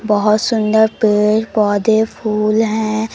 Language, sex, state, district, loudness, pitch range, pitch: Hindi, female, Madhya Pradesh, Umaria, -15 LUFS, 210-220 Hz, 215 Hz